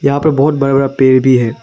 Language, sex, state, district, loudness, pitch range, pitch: Hindi, male, Arunachal Pradesh, Lower Dibang Valley, -11 LUFS, 130-140 Hz, 135 Hz